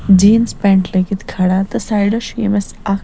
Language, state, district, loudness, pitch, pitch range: Kashmiri, Punjab, Kapurthala, -15 LUFS, 200 Hz, 190-210 Hz